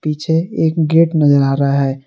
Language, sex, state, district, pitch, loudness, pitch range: Hindi, male, Jharkhand, Garhwa, 155 Hz, -14 LUFS, 140-160 Hz